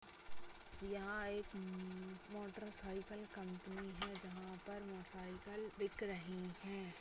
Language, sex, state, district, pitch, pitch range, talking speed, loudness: Hindi, female, Chhattisgarh, Sarguja, 195 Hz, 185-205 Hz, 110 wpm, -48 LUFS